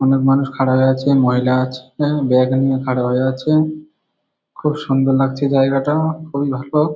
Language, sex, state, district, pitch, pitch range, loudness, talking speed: Bengali, male, West Bengal, Kolkata, 135 Hz, 130-150 Hz, -17 LUFS, 165 wpm